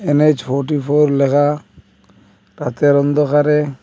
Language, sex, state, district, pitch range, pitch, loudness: Bengali, male, Assam, Hailakandi, 120-150 Hz, 145 Hz, -15 LUFS